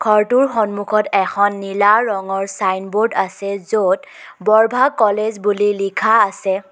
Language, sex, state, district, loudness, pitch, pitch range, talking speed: Assamese, female, Assam, Kamrup Metropolitan, -16 LUFS, 205 Hz, 195-220 Hz, 115 wpm